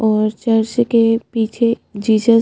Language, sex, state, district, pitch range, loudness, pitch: Hindi, female, Chhattisgarh, Bastar, 220-230 Hz, -16 LUFS, 225 Hz